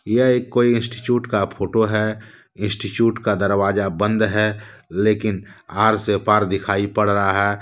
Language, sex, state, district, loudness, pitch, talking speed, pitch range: Hindi, male, Jharkhand, Deoghar, -19 LUFS, 105 Hz, 155 wpm, 100-110 Hz